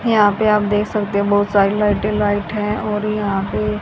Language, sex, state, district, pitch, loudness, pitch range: Hindi, female, Haryana, Rohtak, 210 Hz, -17 LUFS, 205-210 Hz